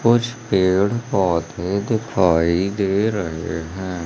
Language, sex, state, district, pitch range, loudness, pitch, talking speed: Hindi, male, Madhya Pradesh, Umaria, 85-110 Hz, -20 LUFS, 95 Hz, 105 wpm